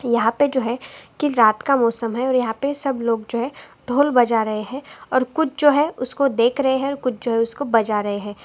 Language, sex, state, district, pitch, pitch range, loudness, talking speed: Hindi, female, Karnataka, Raichur, 250 Hz, 230-275 Hz, -20 LUFS, 250 wpm